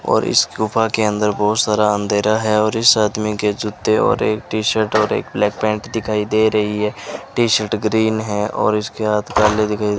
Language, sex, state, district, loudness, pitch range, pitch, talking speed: Hindi, male, Rajasthan, Bikaner, -17 LUFS, 105-110 Hz, 105 Hz, 205 wpm